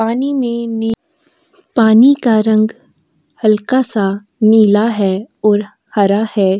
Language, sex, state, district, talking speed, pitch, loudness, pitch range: Hindi, female, Uttar Pradesh, Jyotiba Phule Nagar, 120 wpm, 220 Hz, -13 LUFS, 210-245 Hz